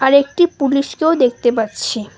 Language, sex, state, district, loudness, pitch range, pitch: Bengali, female, West Bengal, Alipurduar, -16 LUFS, 240-285 Hz, 275 Hz